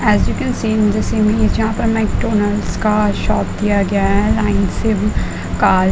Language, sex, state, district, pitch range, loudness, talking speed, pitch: Hindi, female, Uttar Pradesh, Muzaffarnagar, 205-220 Hz, -16 LUFS, 160 wpm, 210 Hz